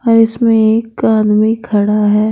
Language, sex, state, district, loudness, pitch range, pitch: Hindi, female, Bihar, Patna, -12 LUFS, 210-225 Hz, 220 Hz